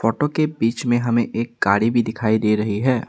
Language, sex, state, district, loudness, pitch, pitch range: Hindi, male, Assam, Sonitpur, -20 LUFS, 115 Hz, 110-120 Hz